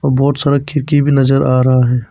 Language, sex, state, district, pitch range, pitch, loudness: Hindi, male, Arunachal Pradesh, Papum Pare, 130-140 Hz, 135 Hz, -13 LUFS